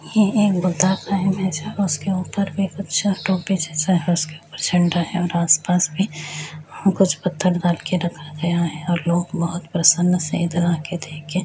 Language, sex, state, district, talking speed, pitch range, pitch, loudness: Hindi, female, Uttar Pradesh, Etah, 160 wpm, 170-190 Hz, 175 Hz, -20 LUFS